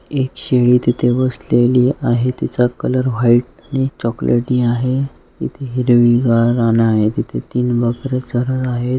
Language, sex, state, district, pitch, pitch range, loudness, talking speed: Marathi, male, Maharashtra, Sindhudurg, 125 Hz, 120-130 Hz, -16 LUFS, 135 wpm